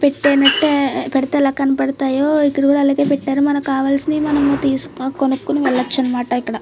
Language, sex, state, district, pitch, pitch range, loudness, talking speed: Telugu, female, Andhra Pradesh, Srikakulam, 275 Hz, 270-285 Hz, -16 LUFS, 145 wpm